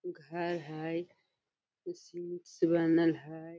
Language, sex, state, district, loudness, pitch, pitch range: Magahi, female, Bihar, Gaya, -33 LUFS, 170 Hz, 165-175 Hz